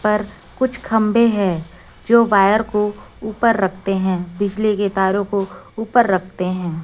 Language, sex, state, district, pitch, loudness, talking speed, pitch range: Hindi, female, Chhattisgarh, Raipur, 205 Hz, -18 LUFS, 150 wpm, 190-220 Hz